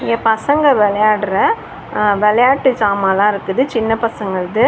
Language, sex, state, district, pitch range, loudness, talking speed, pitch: Tamil, female, Tamil Nadu, Chennai, 205-250 Hz, -14 LUFS, 115 wpm, 220 Hz